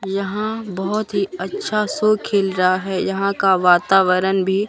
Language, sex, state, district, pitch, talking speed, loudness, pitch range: Hindi, female, Bihar, Katihar, 195 Hz, 155 wpm, -18 LUFS, 190-205 Hz